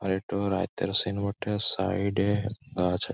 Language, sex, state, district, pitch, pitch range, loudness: Bengali, male, West Bengal, Malda, 100 Hz, 95-105 Hz, -27 LUFS